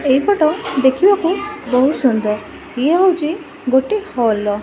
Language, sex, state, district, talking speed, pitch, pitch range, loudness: Odia, female, Odisha, Malkangiri, 140 wpm, 290 Hz, 255-365 Hz, -16 LUFS